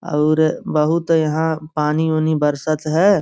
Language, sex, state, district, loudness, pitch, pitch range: Bhojpuri, male, Uttar Pradesh, Gorakhpur, -18 LUFS, 155 Hz, 155-160 Hz